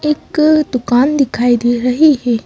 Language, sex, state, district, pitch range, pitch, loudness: Hindi, female, Madhya Pradesh, Bhopal, 240-300 Hz, 255 Hz, -13 LUFS